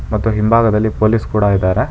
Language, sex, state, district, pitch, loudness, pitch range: Kannada, male, Karnataka, Bangalore, 110 Hz, -14 LUFS, 105-110 Hz